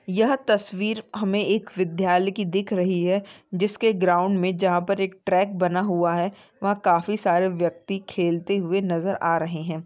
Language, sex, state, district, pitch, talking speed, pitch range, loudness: Hindi, female, Maharashtra, Nagpur, 190 Hz, 180 wpm, 175-200 Hz, -23 LUFS